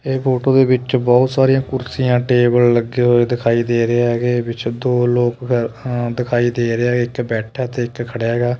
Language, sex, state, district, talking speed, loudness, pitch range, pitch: Punjabi, male, Punjab, Kapurthala, 180 wpm, -17 LUFS, 120-125 Hz, 120 Hz